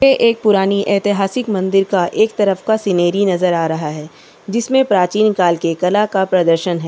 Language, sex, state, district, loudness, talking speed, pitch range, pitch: Hindi, female, Chhattisgarh, Kabirdham, -15 LUFS, 190 wpm, 175-210 Hz, 195 Hz